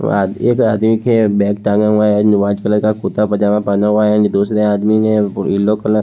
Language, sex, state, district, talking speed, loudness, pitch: Hindi, male, Haryana, Charkhi Dadri, 220 wpm, -14 LUFS, 105 Hz